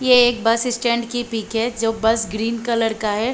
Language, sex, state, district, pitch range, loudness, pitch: Hindi, female, Chhattisgarh, Balrampur, 225-240 Hz, -19 LUFS, 230 Hz